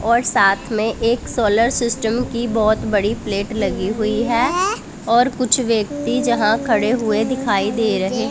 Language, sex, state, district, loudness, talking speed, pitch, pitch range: Hindi, female, Punjab, Pathankot, -18 LUFS, 160 wpm, 230 Hz, 215-245 Hz